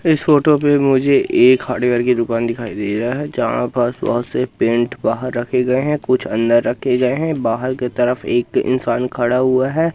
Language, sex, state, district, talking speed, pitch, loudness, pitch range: Hindi, male, Madhya Pradesh, Katni, 205 wpm, 125 Hz, -17 LUFS, 120-135 Hz